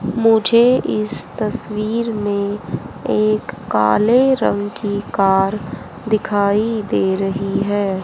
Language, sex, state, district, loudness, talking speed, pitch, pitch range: Hindi, female, Haryana, Jhajjar, -17 LUFS, 95 wpm, 205 Hz, 200-220 Hz